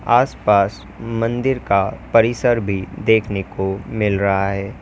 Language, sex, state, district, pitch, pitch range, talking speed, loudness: Hindi, male, Uttar Pradesh, Lalitpur, 105 Hz, 100-115 Hz, 125 wpm, -18 LUFS